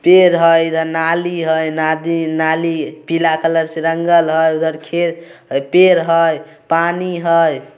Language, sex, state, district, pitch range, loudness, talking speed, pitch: Hindi, male, Bihar, Samastipur, 160-170 Hz, -15 LUFS, 145 wpm, 165 Hz